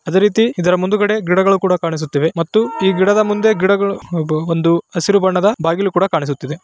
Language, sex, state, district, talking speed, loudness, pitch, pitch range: Kannada, male, Karnataka, Raichur, 180 wpm, -15 LUFS, 185 Hz, 165-200 Hz